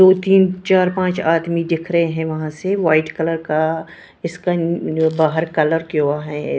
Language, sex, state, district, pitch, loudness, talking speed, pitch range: Hindi, female, Bihar, Patna, 165 Hz, -18 LUFS, 175 wpm, 160-180 Hz